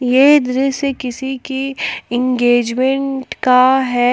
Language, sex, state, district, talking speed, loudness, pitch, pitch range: Hindi, female, Jharkhand, Palamu, 100 wpm, -15 LUFS, 260 Hz, 250-270 Hz